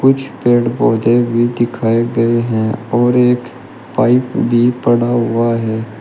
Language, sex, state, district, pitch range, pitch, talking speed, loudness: Hindi, male, Uttar Pradesh, Shamli, 115-125 Hz, 120 Hz, 140 wpm, -14 LUFS